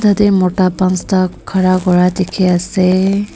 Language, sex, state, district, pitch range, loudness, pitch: Nagamese, female, Nagaland, Dimapur, 185-190 Hz, -13 LUFS, 185 Hz